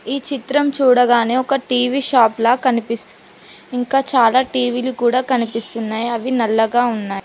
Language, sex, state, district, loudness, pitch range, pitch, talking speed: Telugu, female, Telangana, Mahabubabad, -17 LUFS, 230-260 Hz, 245 Hz, 155 wpm